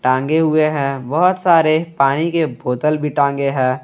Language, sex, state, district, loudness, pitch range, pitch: Hindi, male, Jharkhand, Garhwa, -16 LUFS, 135-160 Hz, 150 Hz